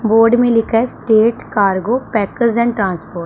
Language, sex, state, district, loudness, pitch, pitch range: Hindi, female, Punjab, Pathankot, -15 LUFS, 225 Hz, 200-235 Hz